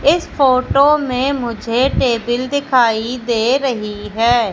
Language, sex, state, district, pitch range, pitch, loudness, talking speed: Hindi, female, Madhya Pradesh, Katni, 230-270 Hz, 250 Hz, -16 LUFS, 120 wpm